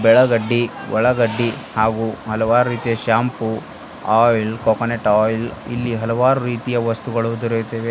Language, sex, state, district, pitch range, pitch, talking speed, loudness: Kannada, male, Karnataka, Bidar, 110-120 Hz, 115 Hz, 105 wpm, -18 LUFS